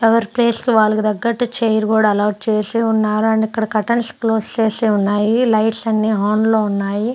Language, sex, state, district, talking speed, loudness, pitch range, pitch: Telugu, female, Andhra Pradesh, Sri Satya Sai, 175 wpm, -16 LUFS, 215-230 Hz, 220 Hz